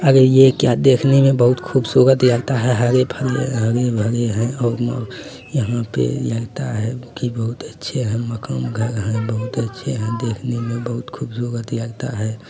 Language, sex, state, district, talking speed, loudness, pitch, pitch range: Maithili, male, Bihar, Araria, 150 wpm, -18 LUFS, 120 Hz, 115-130 Hz